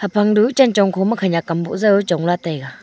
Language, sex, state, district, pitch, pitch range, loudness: Wancho, female, Arunachal Pradesh, Longding, 195 Hz, 170-210 Hz, -17 LUFS